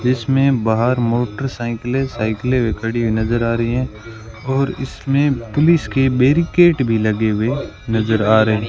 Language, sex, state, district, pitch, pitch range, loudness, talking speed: Hindi, male, Rajasthan, Bikaner, 120 Hz, 110-135 Hz, -17 LUFS, 160 wpm